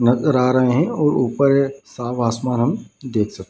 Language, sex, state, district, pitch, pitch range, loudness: Hindi, male, Bihar, Madhepura, 125 Hz, 120-140 Hz, -19 LUFS